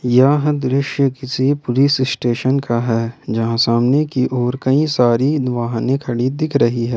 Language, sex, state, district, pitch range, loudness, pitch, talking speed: Hindi, male, Jharkhand, Ranchi, 120-140 Hz, -17 LUFS, 130 Hz, 165 wpm